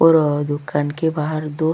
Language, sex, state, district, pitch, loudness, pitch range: Hindi, female, Chhattisgarh, Sukma, 155 Hz, -20 LUFS, 145-160 Hz